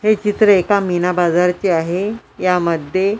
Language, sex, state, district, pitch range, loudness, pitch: Marathi, female, Maharashtra, Washim, 175-205 Hz, -16 LUFS, 185 Hz